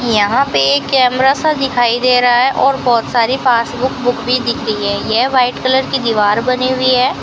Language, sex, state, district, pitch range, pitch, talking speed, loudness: Hindi, female, Rajasthan, Bikaner, 235-260 Hz, 250 Hz, 210 wpm, -13 LUFS